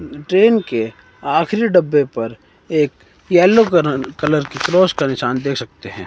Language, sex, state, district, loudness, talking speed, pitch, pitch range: Hindi, male, Himachal Pradesh, Shimla, -16 LUFS, 160 wpm, 145 Hz, 120-175 Hz